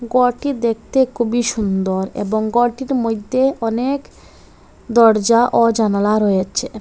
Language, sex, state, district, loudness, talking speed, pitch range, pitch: Bengali, female, Assam, Hailakandi, -17 LUFS, 105 wpm, 215-250 Hz, 230 Hz